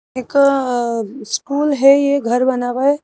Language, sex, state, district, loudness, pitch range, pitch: Hindi, female, Madhya Pradesh, Bhopal, -16 LUFS, 245-280 Hz, 270 Hz